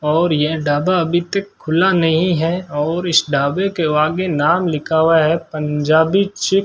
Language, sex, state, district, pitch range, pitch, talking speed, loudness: Hindi, male, Rajasthan, Bikaner, 155-180 Hz, 165 Hz, 180 wpm, -16 LUFS